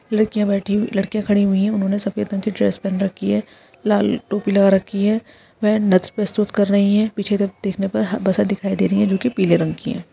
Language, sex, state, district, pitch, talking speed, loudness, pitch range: Hindi, female, Rajasthan, Churu, 200 Hz, 250 wpm, -19 LUFS, 195-210 Hz